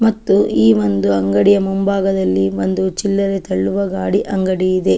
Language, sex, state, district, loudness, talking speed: Kannada, female, Karnataka, Chamarajanagar, -16 LUFS, 145 wpm